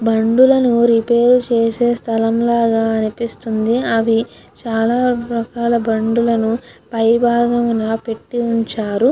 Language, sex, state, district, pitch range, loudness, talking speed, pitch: Telugu, female, Andhra Pradesh, Guntur, 225-240 Hz, -16 LUFS, 90 wpm, 230 Hz